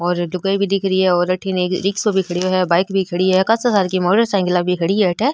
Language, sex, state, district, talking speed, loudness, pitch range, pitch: Rajasthani, female, Rajasthan, Nagaur, 290 wpm, -17 LUFS, 180-195 Hz, 185 Hz